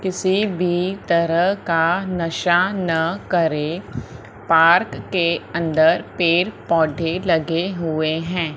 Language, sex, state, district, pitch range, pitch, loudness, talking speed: Hindi, female, Madhya Pradesh, Umaria, 165-180 Hz, 170 Hz, -19 LUFS, 105 wpm